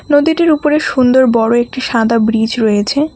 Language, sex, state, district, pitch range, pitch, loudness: Bengali, female, West Bengal, Alipurduar, 225-295 Hz, 255 Hz, -12 LUFS